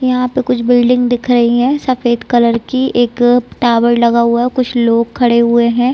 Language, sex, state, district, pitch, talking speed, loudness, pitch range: Hindi, female, Bihar, Saran, 245 Hz, 190 wpm, -12 LUFS, 235-250 Hz